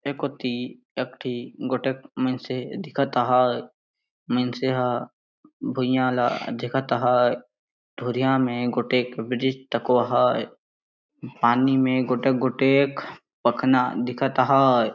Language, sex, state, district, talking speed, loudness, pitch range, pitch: Sadri, male, Chhattisgarh, Jashpur, 95 wpm, -23 LUFS, 125-135 Hz, 130 Hz